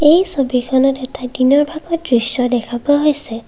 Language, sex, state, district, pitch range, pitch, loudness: Assamese, female, Assam, Kamrup Metropolitan, 250-295 Hz, 265 Hz, -15 LUFS